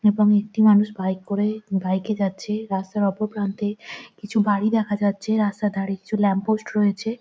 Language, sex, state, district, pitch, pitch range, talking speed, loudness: Bengali, female, West Bengal, Jhargram, 210 Hz, 195-215 Hz, 175 wpm, -22 LUFS